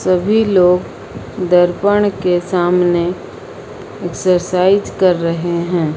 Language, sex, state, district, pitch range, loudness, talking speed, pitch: Hindi, female, Uttar Pradesh, Lucknow, 175-190 Hz, -14 LUFS, 90 wpm, 180 Hz